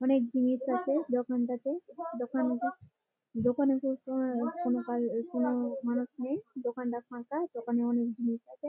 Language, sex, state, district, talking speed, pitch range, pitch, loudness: Bengali, female, West Bengal, Malda, 125 wpm, 240-265 Hz, 245 Hz, -32 LUFS